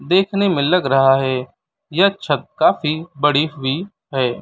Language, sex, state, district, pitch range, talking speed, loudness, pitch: Hindi, male, Uttar Pradesh, Lalitpur, 135-180 Hz, 150 wpm, -18 LUFS, 150 Hz